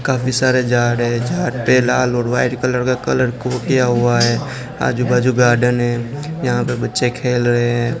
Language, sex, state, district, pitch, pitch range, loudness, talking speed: Hindi, male, Gujarat, Gandhinagar, 125 Hz, 120-130 Hz, -16 LUFS, 185 wpm